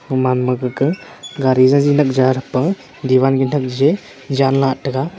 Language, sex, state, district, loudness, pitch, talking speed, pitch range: Wancho, male, Arunachal Pradesh, Longding, -16 LUFS, 135 Hz, 150 wpm, 130-140 Hz